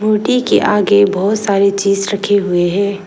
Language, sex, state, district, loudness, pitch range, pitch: Hindi, female, Arunachal Pradesh, Lower Dibang Valley, -13 LUFS, 195-205 Hz, 200 Hz